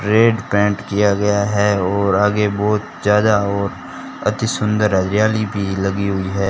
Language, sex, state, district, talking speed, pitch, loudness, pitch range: Hindi, male, Rajasthan, Bikaner, 155 wpm, 105 Hz, -17 LUFS, 100-105 Hz